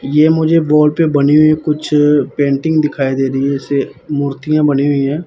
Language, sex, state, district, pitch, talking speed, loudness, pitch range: Hindi, male, Punjab, Pathankot, 145 Hz, 195 wpm, -13 LUFS, 140-155 Hz